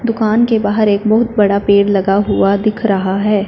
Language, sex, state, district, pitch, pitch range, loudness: Hindi, female, Punjab, Fazilka, 205 Hz, 200-215 Hz, -13 LUFS